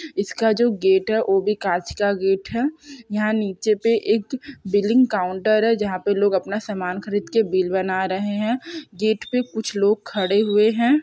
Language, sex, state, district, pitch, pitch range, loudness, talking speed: Hindi, female, Chhattisgarh, Sukma, 210 Hz, 195-230 Hz, -21 LUFS, 195 wpm